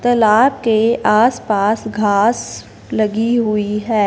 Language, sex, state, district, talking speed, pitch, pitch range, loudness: Hindi, female, Punjab, Fazilka, 105 wpm, 220 Hz, 210-235 Hz, -15 LUFS